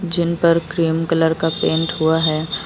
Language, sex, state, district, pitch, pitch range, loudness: Hindi, female, Uttar Pradesh, Lucknow, 165 Hz, 160-170 Hz, -18 LUFS